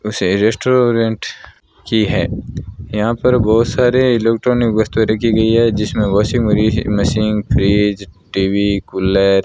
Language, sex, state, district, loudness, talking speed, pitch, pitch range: Hindi, male, Rajasthan, Bikaner, -15 LUFS, 135 wpm, 110 Hz, 100-115 Hz